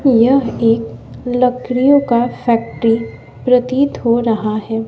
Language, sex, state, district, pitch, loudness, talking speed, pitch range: Hindi, female, Bihar, West Champaran, 240 Hz, -15 LUFS, 110 wpm, 230-250 Hz